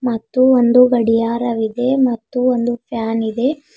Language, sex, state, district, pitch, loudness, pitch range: Kannada, female, Karnataka, Bidar, 240 Hz, -16 LUFS, 230-255 Hz